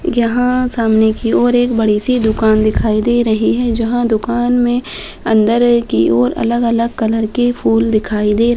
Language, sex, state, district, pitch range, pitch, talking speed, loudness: Hindi, female, Uttar Pradesh, Deoria, 220-240 Hz, 230 Hz, 180 wpm, -14 LUFS